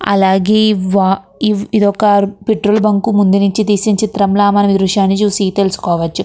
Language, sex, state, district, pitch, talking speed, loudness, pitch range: Telugu, female, Andhra Pradesh, Krishna, 200 Hz, 180 wpm, -13 LUFS, 195-210 Hz